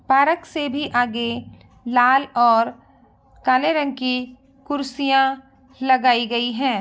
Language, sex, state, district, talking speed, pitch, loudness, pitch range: Hindi, female, Bihar, Begusarai, 115 wpm, 260 Hz, -20 LUFS, 245-275 Hz